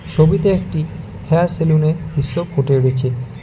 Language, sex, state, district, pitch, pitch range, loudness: Bengali, male, West Bengal, Alipurduar, 155 Hz, 135-170 Hz, -17 LUFS